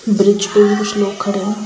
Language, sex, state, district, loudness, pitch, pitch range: Hindi, female, Bihar, Sitamarhi, -15 LUFS, 205 Hz, 200-210 Hz